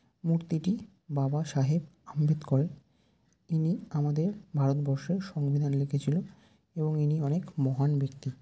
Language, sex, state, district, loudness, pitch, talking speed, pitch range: Bengali, male, West Bengal, Jalpaiguri, -30 LUFS, 150 Hz, 105 wpm, 140-165 Hz